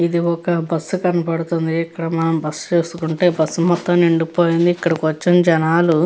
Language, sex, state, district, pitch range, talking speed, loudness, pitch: Telugu, female, Andhra Pradesh, Guntur, 165-175 Hz, 150 wpm, -17 LUFS, 170 Hz